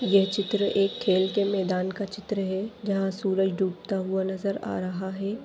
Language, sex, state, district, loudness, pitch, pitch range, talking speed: Hindi, female, Bihar, Purnia, -27 LUFS, 195 Hz, 190-200 Hz, 185 wpm